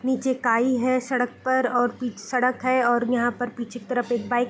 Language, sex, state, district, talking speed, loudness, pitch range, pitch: Hindi, female, Bihar, Gopalganj, 240 wpm, -23 LUFS, 240-255 Hz, 245 Hz